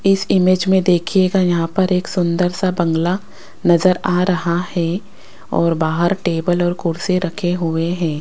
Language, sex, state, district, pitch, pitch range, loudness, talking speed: Hindi, female, Rajasthan, Jaipur, 180 Hz, 170-185 Hz, -17 LUFS, 160 wpm